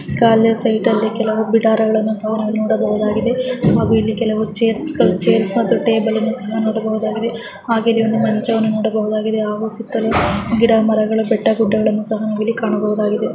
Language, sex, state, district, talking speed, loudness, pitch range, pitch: Kannada, female, Karnataka, Chamarajanagar, 125 wpm, -16 LUFS, 215-225 Hz, 220 Hz